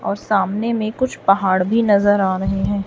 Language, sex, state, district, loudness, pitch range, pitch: Hindi, female, Chhattisgarh, Raipur, -17 LUFS, 195-215 Hz, 200 Hz